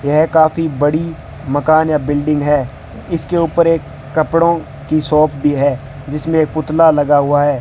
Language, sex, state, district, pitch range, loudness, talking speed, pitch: Hindi, male, Rajasthan, Bikaner, 145-160 Hz, -14 LUFS, 160 wpm, 150 Hz